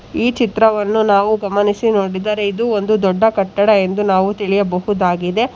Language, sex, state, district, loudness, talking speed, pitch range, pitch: Kannada, female, Karnataka, Bangalore, -15 LUFS, 130 wpm, 195-220 Hz, 205 Hz